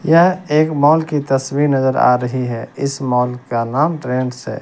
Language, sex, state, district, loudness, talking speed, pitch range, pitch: Hindi, male, Bihar, West Champaran, -16 LUFS, 195 wpm, 125-150 Hz, 135 Hz